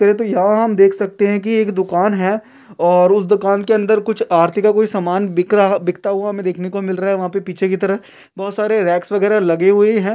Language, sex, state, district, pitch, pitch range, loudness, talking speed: Hindi, male, Uttar Pradesh, Deoria, 200 Hz, 190-210 Hz, -16 LUFS, 255 wpm